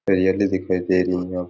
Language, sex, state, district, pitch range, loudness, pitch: Rajasthani, male, Rajasthan, Nagaur, 90-95 Hz, -21 LUFS, 90 Hz